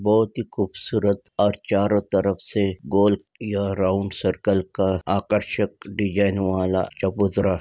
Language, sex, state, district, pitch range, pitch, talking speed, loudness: Hindi, male, Uttar Pradesh, Ghazipur, 95-105 Hz, 100 Hz, 135 wpm, -23 LUFS